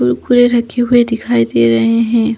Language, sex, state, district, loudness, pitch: Hindi, female, Chhattisgarh, Bastar, -12 LUFS, 230 Hz